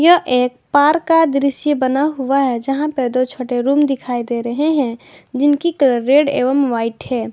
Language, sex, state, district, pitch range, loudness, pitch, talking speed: Hindi, female, Jharkhand, Ranchi, 250-290 Hz, -16 LUFS, 270 Hz, 190 wpm